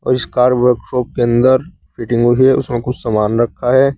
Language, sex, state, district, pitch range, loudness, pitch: Hindi, male, Uttar Pradesh, Saharanpur, 120-130 Hz, -14 LUFS, 125 Hz